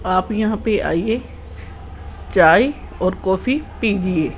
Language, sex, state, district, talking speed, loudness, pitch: Hindi, male, Rajasthan, Jaipur, 110 wpm, -18 LUFS, 185 Hz